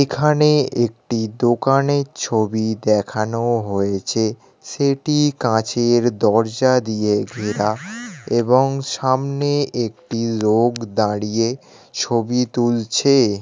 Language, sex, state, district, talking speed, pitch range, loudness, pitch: Bengali, male, West Bengal, Kolkata, 80 wpm, 110-135 Hz, -19 LUFS, 120 Hz